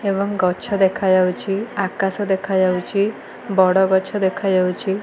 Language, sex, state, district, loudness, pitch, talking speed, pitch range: Odia, female, Odisha, Malkangiri, -19 LUFS, 190 Hz, 105 wpm, 185-200 Hz